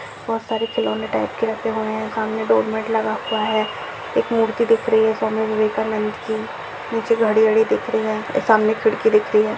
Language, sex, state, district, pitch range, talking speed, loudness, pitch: Hindi, male, Maharashtra, Solapur, 215-225 Hz, 215 wpm, -20 LUFS, 220 Hz